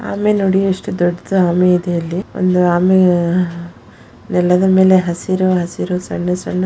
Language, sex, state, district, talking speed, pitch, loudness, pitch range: Kannada, female, Karnataka, Shimoga, 145 wpm, 180 Hz, -15 LUFS, 175-185 Hz